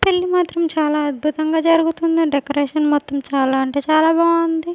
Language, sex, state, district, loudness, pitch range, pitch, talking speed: Telugu, female, Andhra Pradesh, Sri Satya Sai, -17 LUFS, 290-330 Hz, 310 Hz, 140 wpm